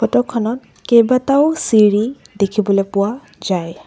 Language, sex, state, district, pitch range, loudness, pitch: Assamese, female, Assam, Sonitpur, 200-250 Hz, -16 LUFS, 220 Hz